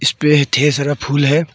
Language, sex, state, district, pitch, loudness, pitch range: Hindi, male, Arunachal Pradesh, Longding, 145 Hz, -14 LUFS, 140-150 Hz